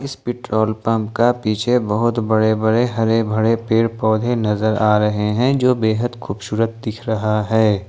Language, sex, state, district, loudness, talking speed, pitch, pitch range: Hindi, male, Jharkhand, Ranchi, -18 LUFS, 165 wpm, 110 Hz, 110-115 Hz